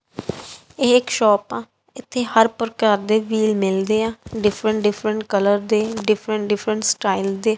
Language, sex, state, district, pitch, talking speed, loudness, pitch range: Punjabi, female, Punjab, Kapurthala, 215 Hz, 150 wpm, -19 LUFS, 210-220 Hz